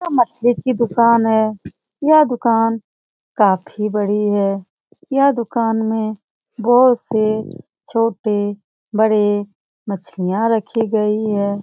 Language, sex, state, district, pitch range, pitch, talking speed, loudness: Hindi, female, Bihar, Lakhisarai, 205-235 Hz, 220 Hz, 105 wpm, -17 LUFS